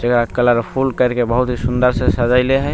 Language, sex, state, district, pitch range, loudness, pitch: Maithili, male, Bihar, Begusarai, 120-125 Hz, -16 LUFS, 125 Hz